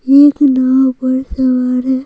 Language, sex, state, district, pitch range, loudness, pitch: Hindi, female, Bihar, Patna, 255-265 Hz, -12 LUFS, 260 Hz